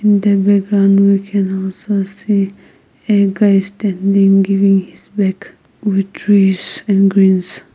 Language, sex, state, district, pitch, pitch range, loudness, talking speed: English, female, Nagaland, Kohima, 195 Hz, 195-200 Hz, -14 LUFS, 130 wpm